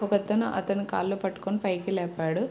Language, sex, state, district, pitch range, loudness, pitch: Telugu, female, Andhra Pradesh, Srikakulam, 185-205 Hz, -28 LUFS, 195 Hz